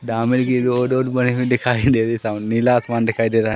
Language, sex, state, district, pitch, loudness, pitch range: Hindi, female, Madhya Pradesh, Umaria, 125 Hz, -18 LUFS, 115-125 Hz